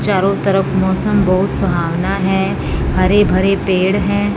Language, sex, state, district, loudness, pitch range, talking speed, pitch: Hindi, female, Punjab, Fazilka, -15 LUFS, 185-200 Hz, 135 wpm, 190 Hz